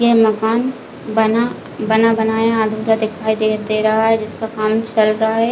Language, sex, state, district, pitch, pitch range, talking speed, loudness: Hindi, female, Chhattisgarh, Bilaspur, 220 Hz, 220-225 Hz, 175 wpm, -16 LUFS